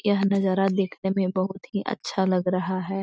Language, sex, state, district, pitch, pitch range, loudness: Hindi, female, Bihar, East Champaran, 195 Hz, 185-195 Hz, -25 LUFS